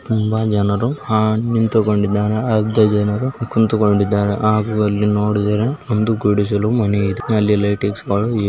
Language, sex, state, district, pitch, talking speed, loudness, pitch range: Kannada, male, Karnataka, Belgaum, 105 Hz, 100 wpm, -17 LUFS, 105-110 Hz